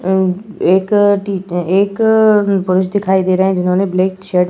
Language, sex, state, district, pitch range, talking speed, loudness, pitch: Hindi, female, Uttar Pradesh, Etah, 185-205 Hz, 185 wpm, -14 LUFS, 190 Hz